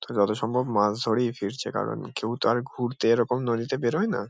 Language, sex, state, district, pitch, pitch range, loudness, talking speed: Bengali, male, West Bengal, Kolkata, 120 Hz, 110-125 Hz, -26 LUFS, 195 wpm